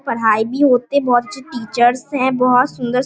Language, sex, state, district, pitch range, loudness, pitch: Hindi, female, Bihar, Darbhanga, 240-260 Hz, -15 LUFS, 250 Hz